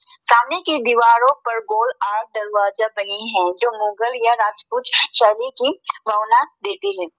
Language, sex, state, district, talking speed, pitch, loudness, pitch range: Hindi, female, Arunachal Pradesh, Lower Dibang Valley, 135 wpm, 235 Hz, -18 LUFS, 210-335 Hz